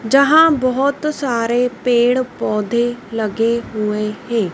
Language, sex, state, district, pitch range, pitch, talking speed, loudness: Hindi, female, Madhya Pradesh, Dhar, 225-260 Hz, 240 Hz, 105 wpm, -17 LUFS